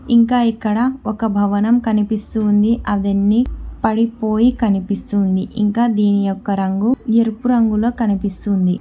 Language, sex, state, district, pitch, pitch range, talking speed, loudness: Telugu, female, Telangana, Hyderabad, 215 Hz, 205-230 Hz, 100 wpm, -17 LUFS